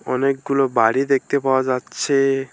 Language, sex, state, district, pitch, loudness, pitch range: Bengali, male, West Bengal, Alipurduar, 135 Hz, -19 LUFS, 130-135 Hz